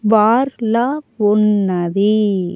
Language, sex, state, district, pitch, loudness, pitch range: Telugu, female, Andhra Pradesh, Annamaya, 210 Hz, -15 LUFS, 200-230 Hz